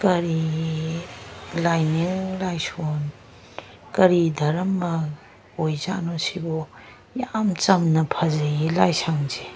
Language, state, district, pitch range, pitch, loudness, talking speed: Manipuri, Manipur, Imphal West, 155-180 Hz, 165 Hz, -23 LUFS, 70 wpm